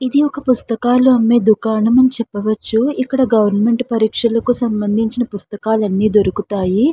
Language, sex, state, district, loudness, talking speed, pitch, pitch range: Telugu, female, Andhra Pradesh, Srikakulam, -15 LUFS, 130 wpm, 230 Hz, 215-245 Hz